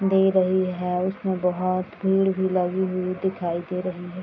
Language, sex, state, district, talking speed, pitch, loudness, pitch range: Hindi, female, Bihar, Madhepura, 185 wpm, 185 Hz, -24 LUFS, 180-190 Hz